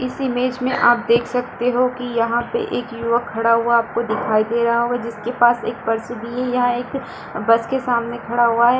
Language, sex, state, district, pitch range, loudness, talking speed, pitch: Hindi, female, Bihar, Supaul, 230-245 Hz, -19 LUFS, 230 wpm, 240 Hz